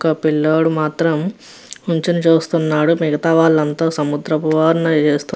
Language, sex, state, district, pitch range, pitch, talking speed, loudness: Telugu, female, Andhra Pradesh, Guntur, 155-165 Hz, 160 Hz, 110 wpm, -16 LUFS